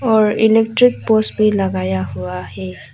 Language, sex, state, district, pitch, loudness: Hindi, female, Arunachal Pradesh, Lower Dibang Valley, 210 Hz, -16 LUFS